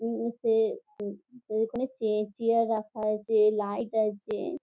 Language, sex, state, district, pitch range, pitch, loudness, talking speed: Bengali, female, West Bengal, Jhargram, 215-255 Hz, 225 Hz, -29 LUFS, 80 wpm